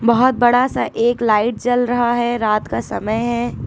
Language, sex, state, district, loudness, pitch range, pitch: Hindi, female, Uttar Pradesh, Lucknow, -17 LUFS, 220-245 Hz, 240 Hz